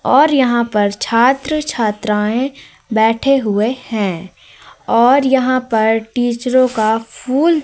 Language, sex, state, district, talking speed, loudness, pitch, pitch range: Hindi, female, Madhya Pradesh, Umaria, 110 wpm, -15 LUFS, 240 Hz, 220-265 Hz